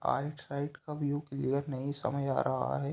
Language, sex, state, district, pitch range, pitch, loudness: Hindi, male, Uttar Pradesh, Ghazipur, 135-145 Hz, 140 Hz, -34 LUFS